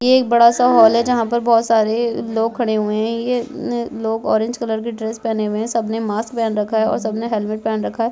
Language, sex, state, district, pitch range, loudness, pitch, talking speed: Hindi, male, Rajasthan, Churu, 220-235 Hz, -18 LUFS, 225 Hz, 260 wpm